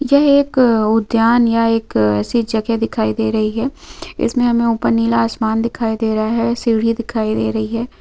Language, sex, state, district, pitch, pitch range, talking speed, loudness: Hindi, female, Chhattisgarh, Bilaspur, 230 Hz, 220-235 Hz, 180 wpm, -16 LUFS